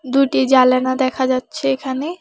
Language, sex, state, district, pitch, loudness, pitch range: Bengali, female, West Bengal, Alipurduar, 260 Hz, -17 LUFS, 255-275 Hz